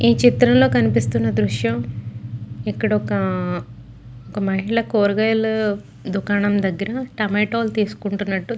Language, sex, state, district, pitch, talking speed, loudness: Telugu, female, Andhra Pradesh, Guntur, 175 Hz, 100 wpm, -20 LUFS